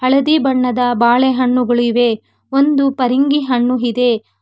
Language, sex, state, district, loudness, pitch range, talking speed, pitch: Kannada, female, Karnataka, Bangalore, -14 LUFS, 240-270 Hz, 110 wpm, 250 Hz